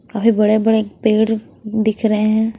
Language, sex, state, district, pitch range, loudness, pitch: Hindi, female, Haryana, Rohtak, 215-225 Hz, -16 LUFS, 220 Hz